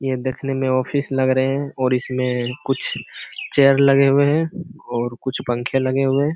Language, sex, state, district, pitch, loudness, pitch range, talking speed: Hindi, male, Bihar, Jamui, 135 Hz, -20 LUFS, 130-140 Hz, 190 wpm